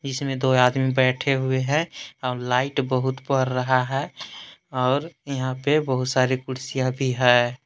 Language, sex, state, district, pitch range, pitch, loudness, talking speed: Hindi, male, Jharkhand, Palamu, 130-135 Hz, 130 Hz, -23 LUFS, 155 wpm